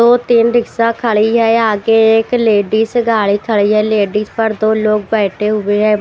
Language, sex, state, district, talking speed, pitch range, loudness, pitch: Hindi, female, Chhattisgarh, Raipur, 180 wpm, 210-230 Hz, -13 LUFS, 220 Hz